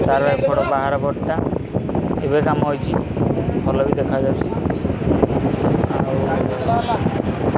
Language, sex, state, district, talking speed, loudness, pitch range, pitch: Odia, male, Odisha, Khordha, 95 wpm, -19 LUFS, 135-140 Hz, 140 Hz